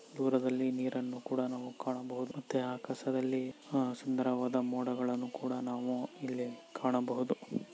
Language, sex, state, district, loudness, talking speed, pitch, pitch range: Kannada, male, Karnataka, Mysore, -36 LUFS, 100 wpm, 125 Hz, 125-130 Hz